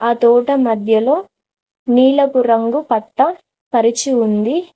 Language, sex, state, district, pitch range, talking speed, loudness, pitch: Telugu, female, Telangana, Mahabubabad, 230-280 Hz, 90 wpm, -15 LUFS, 245 Hz